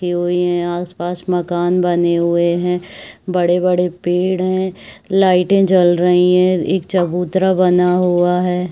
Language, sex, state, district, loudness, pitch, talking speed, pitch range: Hindi, female, Chhattisgarh, Bilaspur, -15 LUFS, 180 Hz, 145 wpm, 175-185 Hz